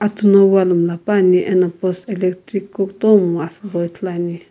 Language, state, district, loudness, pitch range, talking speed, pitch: Sumi, Nagaland, Kohima, -16 LUFS, 175-200 Hz, 145 wpm, 185 Hz